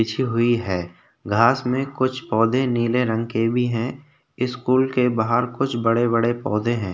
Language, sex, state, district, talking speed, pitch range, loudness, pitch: Hindi, male, Maharashtra, Chandrapur, 175 wpm, 115-130 Hz, -21 LUFS, 120 Hz